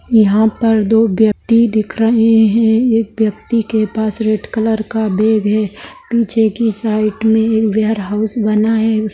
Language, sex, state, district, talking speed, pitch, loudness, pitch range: Hindi, female, Rajasthan, Nagaur, 170 wpm, 220 Hz, -14 LUFS, 215-225 Hz